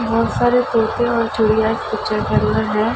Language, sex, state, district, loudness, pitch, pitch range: Hindi, female, Uttar Pradesh, Ghazipur, -17 LUFS, 225 Hz, 220-235 Hz